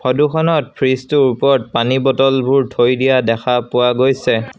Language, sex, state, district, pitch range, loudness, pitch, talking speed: Assamese, male, Assam, Sonitpur, 125-135 Hz, -15 LUFS, 130 Hz, 130 wpm